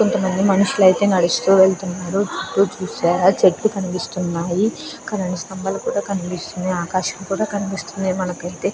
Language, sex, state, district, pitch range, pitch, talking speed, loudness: Telugu, female, Andhra Pradesh, Krishna, 180-195 Hz, 190 Hz, 110 wpm, -19 LUFS